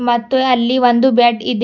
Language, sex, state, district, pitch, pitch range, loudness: Kannada, female, Karnataka, Bidar, 245 Hz, 240-255 Hz, -13 LUFS